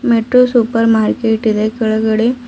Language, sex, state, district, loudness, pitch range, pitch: Kannada, female, Karnataka, Bidar, -13 LUFS, 220-240 Hz, 225 Hz